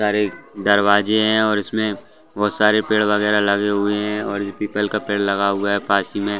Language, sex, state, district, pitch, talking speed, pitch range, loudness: Hindi, male, Chhattisgarh, Bastar, 105 Hz, 205 wpm, 100-105 Hz, -19 LUFS